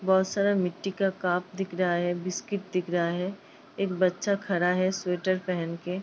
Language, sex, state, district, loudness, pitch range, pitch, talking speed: Hindi, female, Uttar Pradesh, Ghazipur, -28 LUFS, 180-195 Hz, 185 Hz, 190 wpm